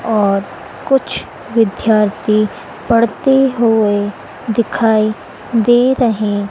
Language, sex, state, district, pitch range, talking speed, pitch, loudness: Hindi, female, Madhya Pradesh, Dhar, 210-235 Hz, 75 wpm, 225 Hz, -14 LUFS